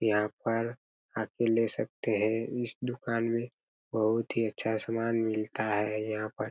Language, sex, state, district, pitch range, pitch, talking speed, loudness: Hindi, male, Chhattisgarh, Raigarh, 110-115 Hz, 115 Hz, 165 wpm, -31 LUFS